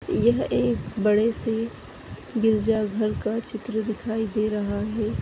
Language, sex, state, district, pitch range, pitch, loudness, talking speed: Kumaoni, female, Uttarakhand, Tehri Garhwal, 215-225 Hz, 220 Hz, -25 LUFS, 125 wpm